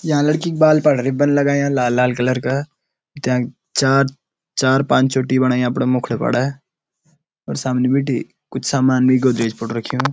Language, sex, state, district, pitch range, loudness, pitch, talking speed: Garhwali, male, Uttarakhand, Uttarkashi, 125-145 Hz, -17 LUFS, 130 Hz, 170 wpm